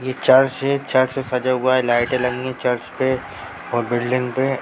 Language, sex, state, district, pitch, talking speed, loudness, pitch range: Hindi, female, Bihar, Darbhanga, 130 Hz, 210 wpm, -19 LUFS, 125-130 Hz